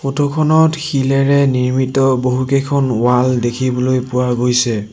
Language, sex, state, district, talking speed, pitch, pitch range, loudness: Assamese, male, Assam, Sonitpur, 110 wpm, 130 Hz, 125-140 Hz, -15 LUFS